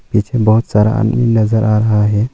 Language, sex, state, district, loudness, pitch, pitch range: Hindi, male, Arunachal Pradesh, Longding, -13 LUFS, 110 Hz, 105-115 Hz